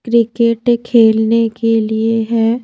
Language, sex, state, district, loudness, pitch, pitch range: Hindi, female, Madhya Pradesh, Bhopal, -13 LUFS, 230 Hz, 225-235 Hz